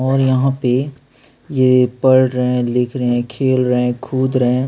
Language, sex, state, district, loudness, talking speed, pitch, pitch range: Hindi, male, Chhattisgarh, Sukma, -16 LUFS, 205 wpm, 130 Hz, 125-130 Hz